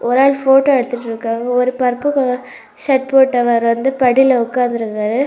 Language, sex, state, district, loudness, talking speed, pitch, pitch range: Tamil, female, Tamil Nadu, Kanyakumari, -15 LUFS, 150 wpm, 250 Hz, 240-265 Hz